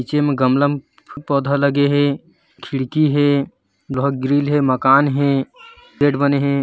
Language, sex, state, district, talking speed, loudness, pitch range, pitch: Hindi, male, Chhattisgarh, Bilaspur, 145 wpm, -17 LUFS, 140-145 Hz, 140 Hz